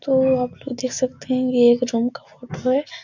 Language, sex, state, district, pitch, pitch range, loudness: Hindi, female, Uttar Pradesh, Etah, 255 Hz, 245-260 Hz, -21 LUFS